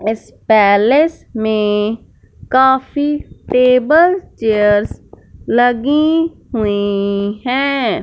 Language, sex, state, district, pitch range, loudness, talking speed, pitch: Hindi, female, Punjab, Fazilka, 210-280 Hz, -14 LUFS, 65 wpm, 240 Hz